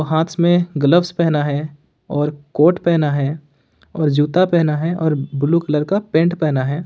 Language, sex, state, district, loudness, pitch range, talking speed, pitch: Hindi, male, Jharkhand, Ranchi, -17 LUFS, 145-170 Hz, 175 wpm, 155 Hz